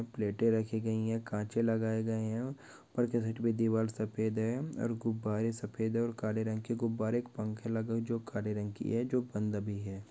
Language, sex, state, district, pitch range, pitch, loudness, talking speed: Hindi, male, Chhattisgarh, Balrampur, 110-115 Hz, 110 Hz, -35 LUFS, 235 wpm